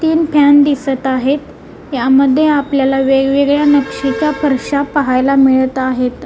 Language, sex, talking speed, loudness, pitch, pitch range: Marathi, female, 115 wpm, -12 LUFS, 275 Hz, 265-290 Hz